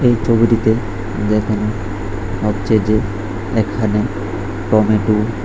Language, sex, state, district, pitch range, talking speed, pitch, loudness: Bengali, male, Tripura, West Tripura, 105-110 Hz, 75 wpm, 105 Hz, -17 LUFS